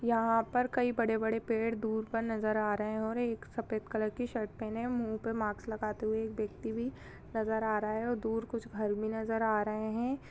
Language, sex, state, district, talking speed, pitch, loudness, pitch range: Hindi, female, Bihar, Madhepura, 230 wpm, 225 Hz, -34 LUFS, 215-230 Hz